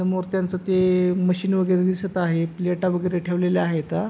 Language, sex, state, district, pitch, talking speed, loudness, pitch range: Marathi, male, Maharashtra, Pune, 180 Hz, 175 wpm, -22 LUFS, 180-185 Hz